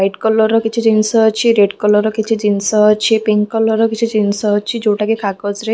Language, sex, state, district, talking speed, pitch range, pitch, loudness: Odia, female, Odisha, Khordha, 240 wpm, 210-225 Hz, 215 Hz, -14 LUFS